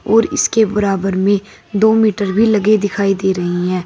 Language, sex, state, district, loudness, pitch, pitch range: Hindi, female, Uttar Pradesh, Saharanpur, -15 LUFS, 205 Hz, 195-220 Hz